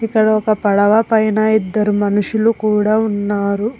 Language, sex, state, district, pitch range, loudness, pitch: Telugu, female, Telangana, Hyderabad, 205-220 Hz, -15 LUFS, 215 Hz